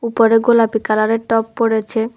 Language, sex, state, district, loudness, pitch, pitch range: Bengali, female, Tripura, West Tripura, -15 LUFS, 225 Hz, 220-230 Hz